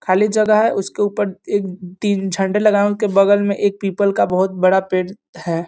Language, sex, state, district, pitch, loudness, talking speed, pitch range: Hindi, male, Bihar, East Champaran, 200 Hz, -17 LUFS, 235 wpm, 185-205 Hz